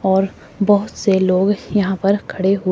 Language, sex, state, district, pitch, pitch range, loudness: Hindi, female, Himachal Pradesh, Shimla, 195 Hz, 190-205 Hz, -17 LUFS